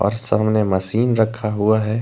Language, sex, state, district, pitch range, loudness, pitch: Hindi, male, Jharkhand, Deoghar, 105-110 Hz, -18 LUFS, 110 Hz